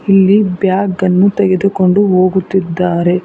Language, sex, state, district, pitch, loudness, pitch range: Kannada, female, Karnataka, Bangalore, 190 Hz, -12 LUFS, 185-195 Hz